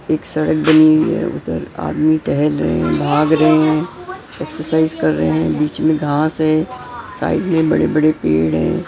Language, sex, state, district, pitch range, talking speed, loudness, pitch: Hindi, male, Maharashtra, Mumbai Suburban, 110-155 Hz, 175 wpm, -16 LUFS, 155 Hz